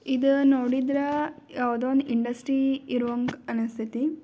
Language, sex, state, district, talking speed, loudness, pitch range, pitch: Kannada, female, Karnataka, Belgaum, 100 wpm, -26 LUFS, 245-275 Hz, 265 Hz